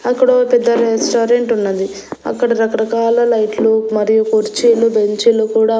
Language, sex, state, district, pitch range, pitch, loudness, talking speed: Telugu, female, Andhra Pradesh, Annamaya, 220-235 Hz, 225 Hz, -14 LUFS, 115 wpm